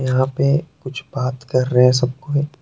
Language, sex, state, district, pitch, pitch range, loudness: Hindi, male, Jharkhand, Deoghar, 130 Hz, 130-140 Hz, -18 LUFS